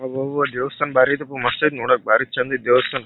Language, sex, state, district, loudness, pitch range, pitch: Kannada, male, Karnataka, Bijapur, -19 LUFS, 130-145 Hz, 135 Hz